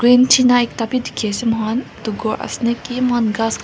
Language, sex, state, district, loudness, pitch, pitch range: Nagamese, female, Nagaland, Kohima, -17 LUFS, 235 Hz, 225-245 Hz